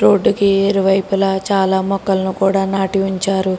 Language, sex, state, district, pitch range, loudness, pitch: Telugu, female, Telangana, Karimnagar, 190-195 Hz, -16 LUFS, 195 Hz